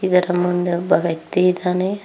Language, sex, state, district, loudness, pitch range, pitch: Kannada, female, Karnataka, Koppal, -19 LUFS, 175-185 Hz, 180 Hz